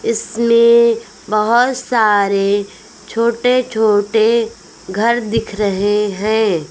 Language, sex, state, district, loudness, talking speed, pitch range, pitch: Hindi, female, Uttar Pradesh, Lucknow, -15 LUFS, 80 wpm, 210-235 Hz, 220 Hz